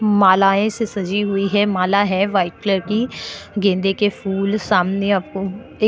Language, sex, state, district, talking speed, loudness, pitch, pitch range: Hindi, female, Chhattisgarh, Korba, 175 wpm, -18 LUFS, 195 Hz, 195-205 Hz